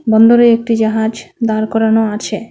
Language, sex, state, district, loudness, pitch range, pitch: Bengali, female, West Bengal, Cooch Behar, -13 LUFS, 220-230 Hz, 220 Hz